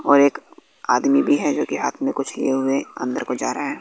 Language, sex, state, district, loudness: Hindi, male, Bihar, West Champaran, -21 LUFS